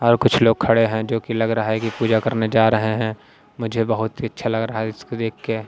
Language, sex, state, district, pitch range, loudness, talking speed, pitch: Hindi, male, Haryana, Jhajjar, 110-115 Hz, -20 LUFS, 255 wpm, 115 Hz